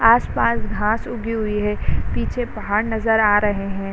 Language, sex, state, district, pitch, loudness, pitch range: Hindi, female, Bihar, Sitamarhi, 210 Hz, -20 LUFS, 200-220 Hz